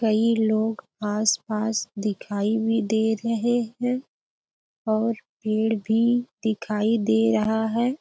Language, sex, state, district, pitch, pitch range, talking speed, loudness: Hindi, female, Chhattisgarh, Balrampur, 220 Hz, 215-230 Hz, 110 wpm, -24 LUFS